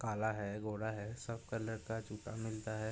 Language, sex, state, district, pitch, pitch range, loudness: Hindi, male, Uttar Pradesh, Budaun, 110 Hz, 110-115 Hz, -42 LUFS